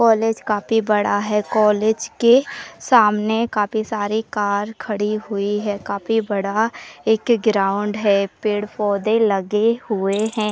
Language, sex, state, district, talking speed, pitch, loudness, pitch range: Hindi, female, Uttar Pradesh, Muzaffarnagar, 130 wpm, 215 Hz, -19 LUFS, 205-225 Hz